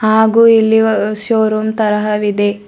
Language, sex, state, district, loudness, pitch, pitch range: Kannada, female, Karnataka, Bidar, -12 LUFS, 215 Hz, 210-220 Hz